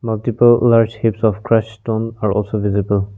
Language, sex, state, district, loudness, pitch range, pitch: English, male, Nagaland, Kohima, -16 LUFS, 105-115 Hz, 110 Hz